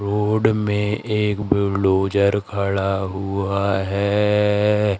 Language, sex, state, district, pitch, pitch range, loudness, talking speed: Hindi, female, Madhya Pradesh, Katni, 100 Hz, 100-105 Hz, -20 LUFS, 85 wpm